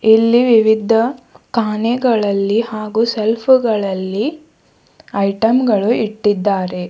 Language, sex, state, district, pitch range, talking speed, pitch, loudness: Kannada, female, Karnataka, Bidar, 205-235 Hz, 60 wpm, 220 Hz, -15 LUFS